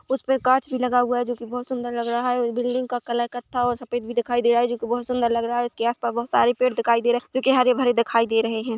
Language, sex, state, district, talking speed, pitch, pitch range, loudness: Hindi, male, Chhattisgarh, Korba, 320 wpm, 240 Hz, 235-250 Hz, -22 LUFS